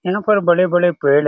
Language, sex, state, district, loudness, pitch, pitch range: Hindi, male, Bihar, Saran, -15 LUFS, 175 Hz, 165-185 Hz